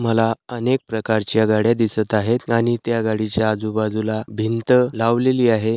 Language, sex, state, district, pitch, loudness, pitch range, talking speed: Marathi, male, Maharashtra, Sindhudurg, 115 Hz, -19 LUFS, 110-120 Hz, 135 wpm